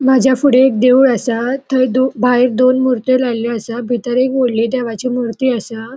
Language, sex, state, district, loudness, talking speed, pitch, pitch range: Konkani, female, Goa, North and South Goa, -14 LUFS, 170 wpm, 250 Hz, 235-260 Hz